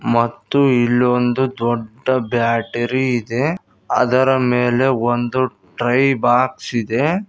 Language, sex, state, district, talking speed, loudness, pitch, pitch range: Kannada, male, Karnataka, Koppal, 90 wpm, -17 LUFS, 125 Hz, 120-130 Hz